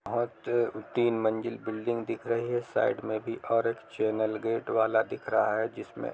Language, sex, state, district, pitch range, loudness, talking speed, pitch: Hindi, male, Jharkhand, Jamtara, 110-115 Hz, -30 LUFS, 185 wpm, 115 Hz